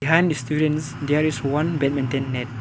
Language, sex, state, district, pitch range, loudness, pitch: English, male, Arunachal Pradesh, Lower Dibang Valley, 135-155 Hz, -22 LUFS, 145 Hz